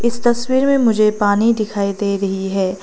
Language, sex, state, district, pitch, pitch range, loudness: Hindi, female, Arunachal Pradesh, Longding, 210 Hz, 200-235 Hz, -16 LUFS